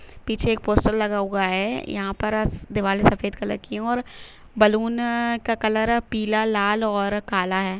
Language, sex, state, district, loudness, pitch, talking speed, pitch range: Hindi, female, Chhattisgarh, Rajnandgaon, -23 LUFS, 215 Hz, 175 wpm, 200-225 Hz